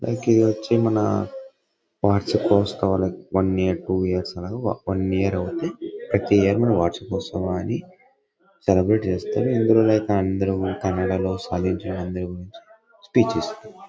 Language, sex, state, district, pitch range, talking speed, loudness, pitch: Telugu, male, Karnataka, Bellary, 95-115 Hz, 130 wpm, -22 LUFS, 100 Hz